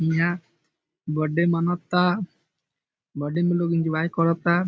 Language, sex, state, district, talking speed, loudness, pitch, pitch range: Bhojpuri, male, Bihar, Saran, 130 wpm, -23 LUFS, 170 Hz, 160-175 Hz